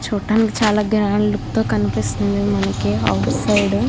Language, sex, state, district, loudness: Telugu, female, Andhra Pradesh, Krishna, -18 LUFS